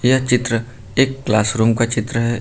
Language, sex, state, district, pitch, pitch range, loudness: Hindi, male, Uttar Pradesh, Lucknow, 115 Hz, 115-125 Hz, -18 LUFS